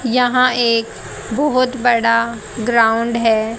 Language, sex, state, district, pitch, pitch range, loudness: Hindi, female, Haryana, Charkhi Dadri, 235 Hz, 230-245 Hz, -16 LUFS